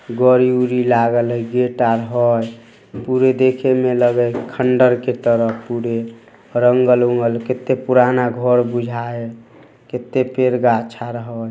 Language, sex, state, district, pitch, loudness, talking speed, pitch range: Hindi, male, Bihar, Samastipur, 120 Hz, -17 LUFS, 150 wpm, 115-125 Hz